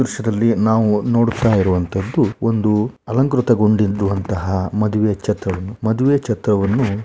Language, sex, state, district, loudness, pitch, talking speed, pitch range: Kannada, male, Karnataka, Shimoga, -17 LUFS, 110 Hz, 120 wpm, 100-115 Hz